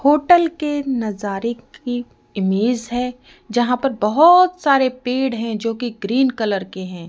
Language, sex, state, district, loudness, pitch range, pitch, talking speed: Hindi, female, Rajasthan, Jaipur, -18 LUFS, 215-270 Hz, 245 Hz, 150 wpm